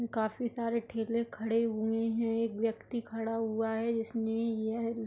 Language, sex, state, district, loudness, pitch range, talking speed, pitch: Hindi, female, Uttar Pradesh, Etah, -33 LUFS, 225-230 Hz, 165 wpm, 225 Hz